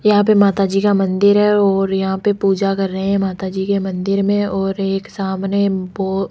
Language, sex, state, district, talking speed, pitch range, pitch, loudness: Hindi, female, Rajasthan, Jaipur, 220 wpm, 195-200 Hz, 195 Hz, -17 LUFS